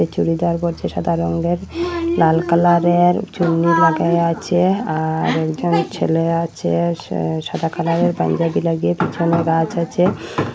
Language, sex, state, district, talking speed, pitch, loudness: Bengali, female, Assam, Hailakandi, 120 wpm, 165 Hz, -18 LUFS